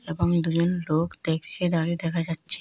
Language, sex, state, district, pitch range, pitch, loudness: Bengali, female, Assam, Hailakandi, 165-175 Hz, 170 Hz, -22 LUFS